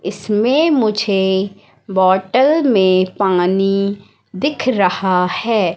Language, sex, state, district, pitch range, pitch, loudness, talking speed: Hindi, female, Madhya Pradesh, Katni, 190-230 Hz, 195 Hz, -15 LUFS, 85 wpm